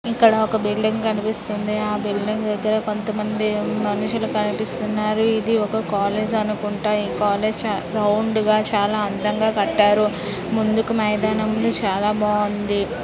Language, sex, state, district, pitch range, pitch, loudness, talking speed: Telugu, female, Andhra Pradesh, Srikakulam, 210-220 Hz, 215 Hz, -21 LUFS, 120 wpm